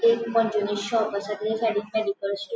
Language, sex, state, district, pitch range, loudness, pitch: Konkani, female, Goa, North and South Goa, 205-225 Hz, -25 LUFS, 215 Hz